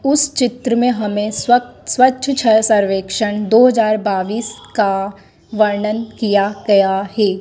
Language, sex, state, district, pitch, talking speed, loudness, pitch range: Hindi, female, Madhya Pradesh, Dhar, 215 Hz, 130 wpm, -15 LUFS, 205-240 Hz